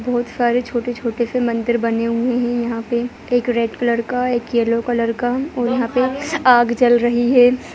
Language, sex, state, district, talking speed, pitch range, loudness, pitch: Hindi, female, Bihar, Muzaffarpur, 195 wpm, 235-245 Hz, -18 LUFS, 240 Hz